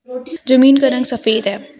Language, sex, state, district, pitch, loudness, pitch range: Hindi, female, Jharkhand, Deoghar, 255 Hz, -14 LUFS, 245-275 Hz